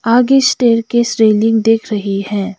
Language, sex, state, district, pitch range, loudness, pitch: Hindi, female, Sikkim, Gangtok, 210-235 Hz, -13 LUFS, 225 Hz